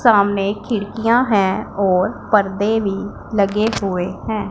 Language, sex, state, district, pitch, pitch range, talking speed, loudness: Hindi, female, Punjab, Pathankot, 205 Hz, 195-220 Hz, 120 wpm, -18 LUFS